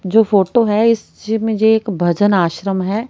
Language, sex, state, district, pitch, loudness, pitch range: Hindi, female, Haryana, Rohtak, 210 Hz, -15 LUFS, 195-220 Hz